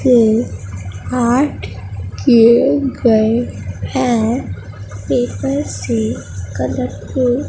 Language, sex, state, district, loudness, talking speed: Hindi, female, Bihar, Katihar, -16 LUFS, 55 wpm